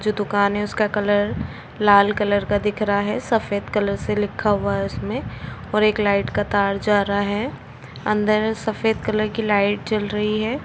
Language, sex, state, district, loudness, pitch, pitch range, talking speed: Hindi, female, Bihar, Gopalganj, -21 LUFS, 205 Hz, 200-215 Hz, 190 wpm